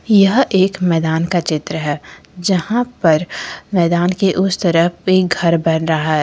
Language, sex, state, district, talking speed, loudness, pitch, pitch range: Hindi, female, Jharkhand, Ranchi, 165 wpm, -16 LUFS, 175 Hz, 165-190 Hz